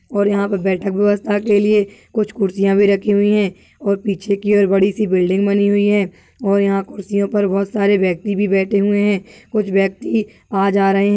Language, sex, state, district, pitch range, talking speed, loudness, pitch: Hindi, female, Maharashtra, Nagpur, 195-205 Hz, 205 wpm, -17 LUFS, 200 Hz